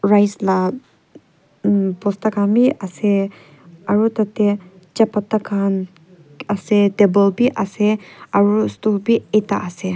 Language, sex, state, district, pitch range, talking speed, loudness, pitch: Nagamese, female, Nagaland, Kohima, 190-215 Hz, 125 wpm, -18 LUFS, 205 Hz